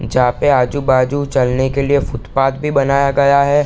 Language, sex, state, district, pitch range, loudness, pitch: Hindi, male, Bihar, East Champaran, 130-140 Hz, -15 LUFS, 140 Hz